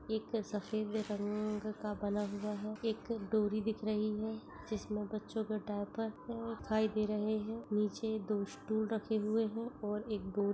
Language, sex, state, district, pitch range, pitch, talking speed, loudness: Hindi, female, Jharkhand, Jamtara, 210-220 Hz, 215 Hz, 160 wpm, -38 LUFS